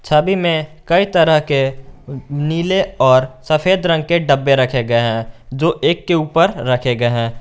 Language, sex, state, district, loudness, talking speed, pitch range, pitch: Hindi, male, Jharkhand, Garhwa, -15 LUFS, 170 wpm, 130-165 Hz, 145 Hz